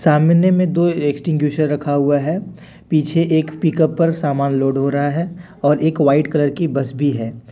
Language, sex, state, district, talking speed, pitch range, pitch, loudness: Hindi, male, Jharkhand, Deoghar, 190 wpm, 145-165 Hz, 150 Hz, -17 LUFS